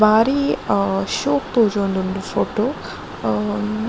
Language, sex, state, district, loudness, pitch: Tulu, female, Karnataka, Dakshina Kannada, -20 LUFS, 195 Hz